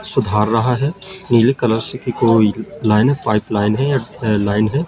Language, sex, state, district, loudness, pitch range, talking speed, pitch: Hindi, male, Madhya Pradesh, Katni, -16 LUFS, 105-135 Hz, 210 wpm, 115 Hz